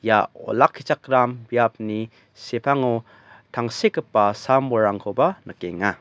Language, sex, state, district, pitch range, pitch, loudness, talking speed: Garo, male, Meghalaya, West Garo Hills, 105-130 Hz, 120 Hz, -22 LUFS, 70 wpm